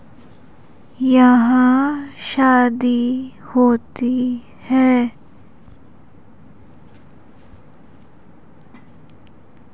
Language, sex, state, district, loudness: Hindi, female, Madhya Pradesh, Umaria, -16 LUFS